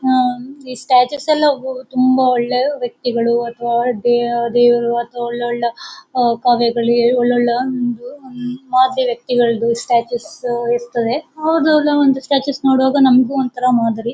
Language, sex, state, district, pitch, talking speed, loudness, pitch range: Kannada, female, Karnataka, Dakshina Kannada, 245 Hz, 125 wpm, -16 LUFS, 240-265 Hz